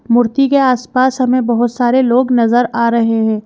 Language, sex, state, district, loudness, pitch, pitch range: Hindi, female, Madhya Pradesh, Bhopal, -13 LUFS, 245 Hz, 235-255 Hz